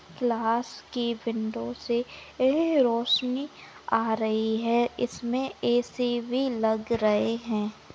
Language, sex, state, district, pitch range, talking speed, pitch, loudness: Hindi, female, Maharashtra, Nagpur, 225-245 Hz, 115 wpm, 235 Hz, -27 LUFS